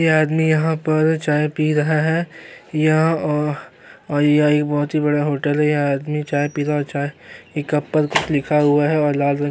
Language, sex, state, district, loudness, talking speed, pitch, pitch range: Hindi, male, Uttarakhand, Tehri Garhwal, -19 LUFS, 220 wpm, 150 Hz, 145-155 Hz